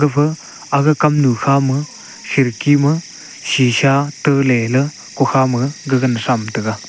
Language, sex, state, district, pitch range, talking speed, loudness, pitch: Wancho, male, Arunachal Pradesh, Longding, 125-145 Hz, 115 wpm, -16 LUFS, 135 Hz